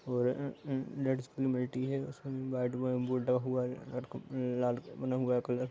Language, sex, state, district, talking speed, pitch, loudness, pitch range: Hindi, male, Chhattisgarh, Raigarh, 95 wpm, 130 Hz, -35 LUFS, 125-130 Hz